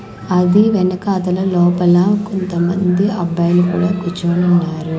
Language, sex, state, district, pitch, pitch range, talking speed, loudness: Telugu, female, Andhra Pradesh, Manyam, 180 Hz, 175-185 Hz, 110 wpm, -15 LUFS